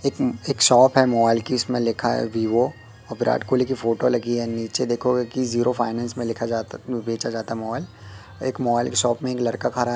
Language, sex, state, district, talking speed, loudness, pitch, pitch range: Hindi, male, Madhya Pradesh, Katni, 230 wpm, -22 LUFS, 120 Hz, 115-125 Hz